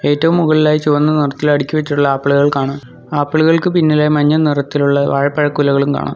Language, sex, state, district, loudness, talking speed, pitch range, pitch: Malayalam, male, Kerala, Kollam, -14 LUFS, 135 wpm, 140-155 Hz, 145 Hz